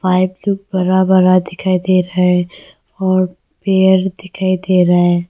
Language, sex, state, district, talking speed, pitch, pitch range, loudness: Hindi, female, Arunachal Pradesh, Longding, 135 wpm, 185 Hz, 180-190 Hz, -14 LUFS